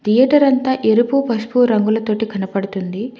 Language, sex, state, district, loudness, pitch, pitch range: Telugu, female, Telangana, Hyderabad, -16 LUFS, 225 Hz, 210-255 Hz